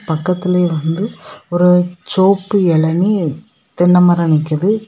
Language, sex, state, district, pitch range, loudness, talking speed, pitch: Tamil, female, Tamil Nadu, Kanyakumari, 170-200 Hz, -14 LUFS, 85 wpm, 180 Hz